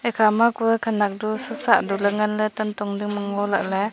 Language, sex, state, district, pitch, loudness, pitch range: Wancho, female, Arunachal Pradesh, Longding, 210 Hz, -22 LUFS, 205-220 Hz